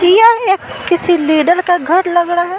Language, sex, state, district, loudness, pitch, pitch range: Hindi, female, Bihar, Patna, -12 LUFS, 355 Hz, 345-375 Hz